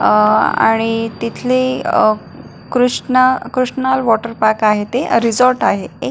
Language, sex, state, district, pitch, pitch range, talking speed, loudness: Marathi, female, Maharashtra, Pune, 230 Hz, 220-255 Hz, 140 wpm, -15 LUFS